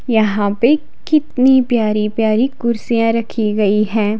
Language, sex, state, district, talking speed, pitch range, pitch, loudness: Hindi, female, Himachal Pradesh, Shimla, 115 wpm, 215-245 Hz, 225 Hz, -15 LUFS